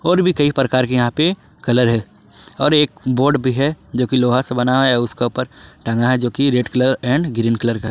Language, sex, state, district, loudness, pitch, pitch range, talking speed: Hindi, male, Jharkhand, Ranchi, -17 LUFS, 125 Hz, 120-140 Hz, 245 wpm